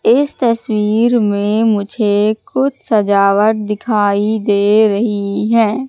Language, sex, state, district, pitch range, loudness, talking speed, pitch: Hindi, female, Madhya Pradesh, Katni, 205-230 Hz, -14 LUFS, 100 wpm, 215 Hz